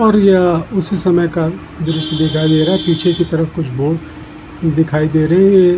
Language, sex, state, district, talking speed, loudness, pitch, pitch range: Hindi, male, Uttarakhand, Tehri Garhwal, 215 wpm, -14 LUFS, 165 Hz, 155-180 Hz